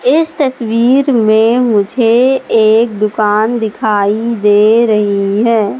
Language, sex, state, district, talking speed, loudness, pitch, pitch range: Hindi, female, Madhya Pradesh, Katni, 105 wpm, -11 LUFS, 225 Hz, 210-240 Hz